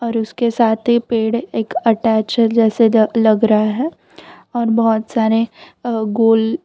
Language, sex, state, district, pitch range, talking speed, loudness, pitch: Hindi, female, Gujarat, Valsad, 220-235 Hz, 155 wpm, -16 LUFS, 225 Hz